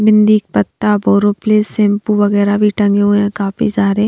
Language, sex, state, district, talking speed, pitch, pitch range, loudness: Hindi, female, Haryana, Rohtak, 175 wpm, 205 Hz, 205-210 Hz, -13 LUFS